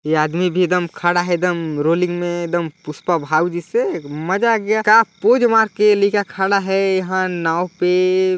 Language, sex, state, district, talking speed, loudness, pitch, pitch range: Hindi, male, Chhattisgarh, Balrampur, 195 wpm, -17 LUFS, 180 Hz, 175-200 Hz